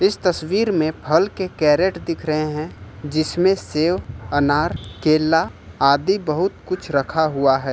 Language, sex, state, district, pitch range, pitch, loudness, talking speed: Hindi, male, Jharkhand, Ranchi, 145-180 Hz, 155 Hz, -20 LUFS, 145 wpm